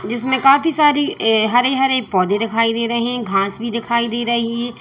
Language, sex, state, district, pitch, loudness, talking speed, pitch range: Hindi, female, Uttar Pradesh, Lalitpur, 235 Hz, -17 LUFS, 210 wpm, 225-255 Hz